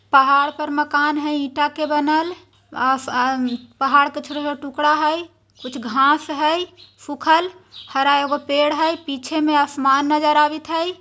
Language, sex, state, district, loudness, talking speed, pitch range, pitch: Hindi, female, Bihar, Jahanabad, -19 LUFS, 145 wpm, 280-305 Hz, 295 Hz